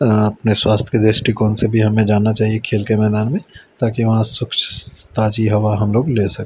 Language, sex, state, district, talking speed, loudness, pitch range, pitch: Hindi, male, Chandigarh, Chandigarh, 205 wpm, -16 LUFS, 105-115 Hz, 110 Hz